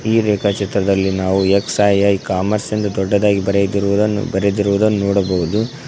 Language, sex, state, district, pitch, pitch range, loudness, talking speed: Kannada, male, Karnataka, Koppal, 100 Hz, 100-105 Hz, -16 LUFS, 100 wpm